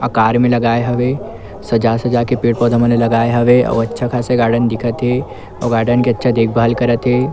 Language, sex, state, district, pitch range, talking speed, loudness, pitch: Chhattisgarhi, male, Chhattisgarh, Kabirdham, 115-125 Hz, 195 wpm, -14 LUFS, 120 Hz